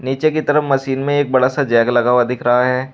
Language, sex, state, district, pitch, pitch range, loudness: Hindi, male, Uttar Pradesh, Shamli, 130 Hz, 125-140 Hz, -15 LUFS